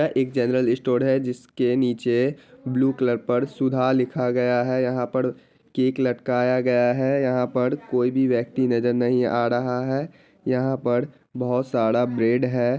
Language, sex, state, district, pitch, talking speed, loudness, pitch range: Hindi, male, Bihar, Araria, 125 Hz, 170 wpm, -22 LUFS, 125-130 Hz